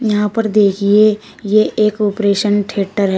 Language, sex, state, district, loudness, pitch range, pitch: Hindi, female, Uttar Pradesh, Shamli, -14 LUFS, 200-215 Hz, 210 Hz